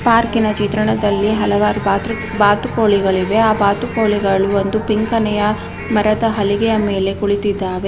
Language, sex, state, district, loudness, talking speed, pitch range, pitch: Kannada, female, Karnataka, Chamarajanagar, -16 LUFS, 105 wpm, 200-220 Hz, 210 Hz